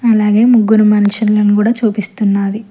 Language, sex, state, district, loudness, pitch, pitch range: Telugu, female, Telangana, Mahabubabad, -11 LUFS, 210 Hz, 205-220 Hz